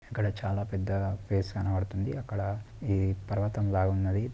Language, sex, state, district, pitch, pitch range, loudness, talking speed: Telugu, male, Andhra Pradesh, Krishna, 100 Hz, 95-105 Hz, -31 LUFS, 140 wpm